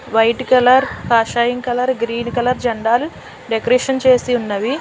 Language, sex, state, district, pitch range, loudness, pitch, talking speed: Telugu, female, Telangana, Hyderabad, 235-255 Hz, -16 LUFS, 245 Hz, 125 wpm